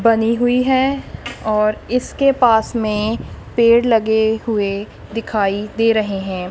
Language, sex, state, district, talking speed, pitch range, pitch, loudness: Hindi, female, Punjab, Kapurthala, 130 wpm, 215-235 Hz, 225 Hz, -17 LUFS